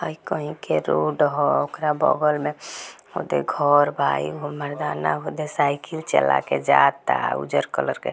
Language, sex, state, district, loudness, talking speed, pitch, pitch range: Bhojpuri, female, Bihar, Gopalganj, -22 LUFS, 160 wpm, 145 Hz, 90-150 Hz